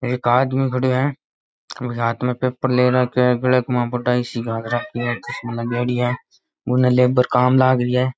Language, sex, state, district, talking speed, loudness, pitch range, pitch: Rajasthani, male, Rajasthan, Nagaur, 185 wpm, -19 LUFS, 120-125 Hz, 125 Hz